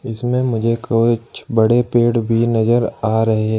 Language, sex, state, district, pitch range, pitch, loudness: Hindi, male, Jharkhand, Ranchi, 115-120 Hz, 115 Hz, -17 LUFS